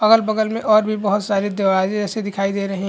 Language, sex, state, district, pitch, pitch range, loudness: Hindi, male, Chhattisgarh, Bilaspur, 205 Hz, 195-215 Hz, -19 LUFS